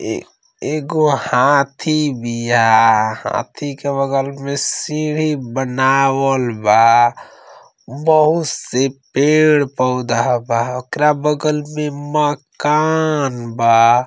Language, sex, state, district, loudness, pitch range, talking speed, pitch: Hindi, female, Uttar Pradesh, Ghazipur, -16 LUFS, 125-150 Hz, 80 wpm, 135 Hz